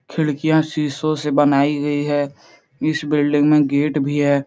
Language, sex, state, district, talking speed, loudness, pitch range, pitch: Hindi, male, Uttar Pradesh, Etah, 160 wpm, -18 LUFS, 145-150 Hz, 145 Hz